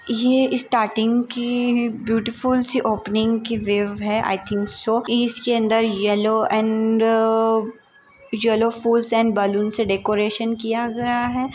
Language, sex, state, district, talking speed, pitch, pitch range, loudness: Hindi, female, Maharashtra, Aurangabad, 125 wpm, 225 Hz, 220-240 Hz, -20 LUFS